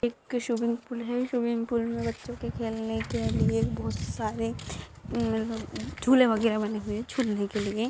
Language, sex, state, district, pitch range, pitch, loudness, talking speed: Hindi, female, Maharashtra, Dhule, 220-240 Hz, 230 Hz, -29 LUFS, 160 wpm